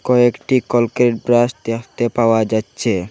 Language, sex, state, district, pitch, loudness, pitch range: Bengali, male, Assam, Hailakandi, 120 Hz, -17 LUFS, 115-120 Hz